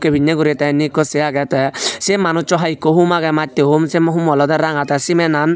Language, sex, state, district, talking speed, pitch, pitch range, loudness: Chakma, male, Tripura, Unakoti, 235 wpm, 155 Hz, 145-165 Hz, -15 LUFS